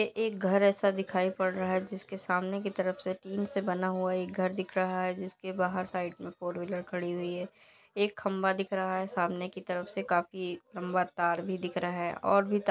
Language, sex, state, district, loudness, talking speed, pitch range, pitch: Hindi, female, Bihar, Madhepura, -32 LUFS, 215 wpm, 180-195 Hz, 185 Hz